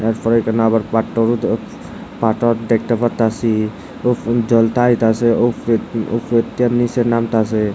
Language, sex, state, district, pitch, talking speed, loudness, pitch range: Bengali, male, Tripura, West Tripura, 115 Hz, 125 wpm, -16 LUFS, 115-120 Hz